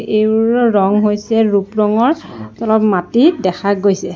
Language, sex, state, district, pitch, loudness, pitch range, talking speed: Assamese, female, Assam, Sonitpur, 210 Hz, -14 LUFS, 200-225 Hz, 130 wpm